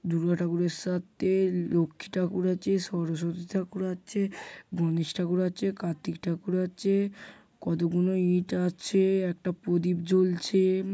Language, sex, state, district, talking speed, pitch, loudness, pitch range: Bengali, male, West Bengal, Kolkata, 120 wpm, 180 Hz, -28 LUFS, 175-190 Hz